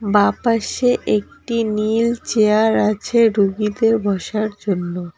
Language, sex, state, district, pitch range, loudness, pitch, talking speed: Bengali, female, West Bengal, Alipurduar, 205-230 Hz, -18 LUFS, 215 Hz, 95 wpm